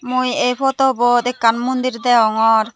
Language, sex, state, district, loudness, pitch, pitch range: Chakma, female, Tripura, Unakoti, -16 LUFS, 245 Hz, 230-255 Hz